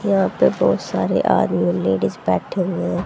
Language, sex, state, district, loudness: Hindi, female, Haryana, Rohtak, -19 LUFS